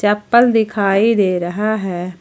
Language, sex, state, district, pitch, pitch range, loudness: Hindi, female, Jharkhand, Ranchi, 205 Hz, 185-220 Hz, -15 LUFS